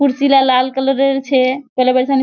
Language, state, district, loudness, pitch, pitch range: Surjapuri, Bihar, Kishanganj, -14 LUFS, 265 Hz, 255-275 Hz